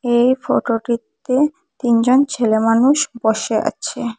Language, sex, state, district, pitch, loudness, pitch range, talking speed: Bengali, female, Assam, Hailakandi, 240 Hz, -17 LUFS, 230-270 Hz, 100 wpm